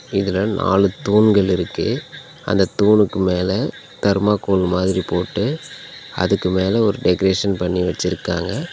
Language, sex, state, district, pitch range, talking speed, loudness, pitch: Tamil, male, Tamil Nadu, Nilgiris, 90-100 Hz, 110 wpm, -18 LUFS, 95 Hz